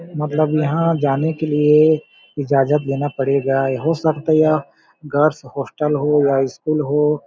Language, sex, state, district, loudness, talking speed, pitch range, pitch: Hindi, male, Chhattisgarh, Balrampur, -18 LUFS, 150 wpm, 140-155 Hz, 150 Hz